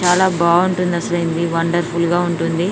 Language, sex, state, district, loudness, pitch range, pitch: Telugu, female, Telangana, Nalgonda, -17 LUFS, 170-180 Hz, 170 Hz